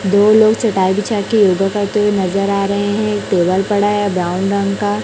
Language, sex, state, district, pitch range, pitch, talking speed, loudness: Hindi, female, Chhattisgarh, Raipur, 195-210 Hz, 200 Hz, 225 wpm, -15 LUFS